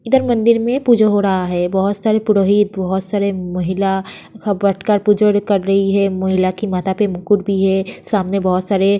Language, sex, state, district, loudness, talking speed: Hindi, female, Uttar Pradesh, Jyotiba Phule Nagar, -16 LUFS, 205 wpm